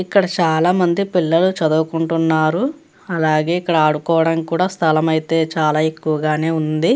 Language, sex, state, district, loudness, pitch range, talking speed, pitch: Telugu, female, Andhra Pradesh, Chittoor, -17 LUFS, 155-175 Hz, 110 wpm, 165 Hz